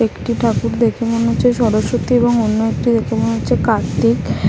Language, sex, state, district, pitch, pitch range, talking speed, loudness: Bengali, female, West Bengal, Malda, 230 Hz, 220-235 Hz, 185 wpm, -16 LUFS